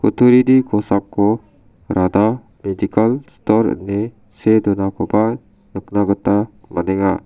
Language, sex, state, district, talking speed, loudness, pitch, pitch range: Garo, male, Meghalaya, South Garo Hills, 90 wpm, -17 LUFS, 105 Hz, 100-110 Hz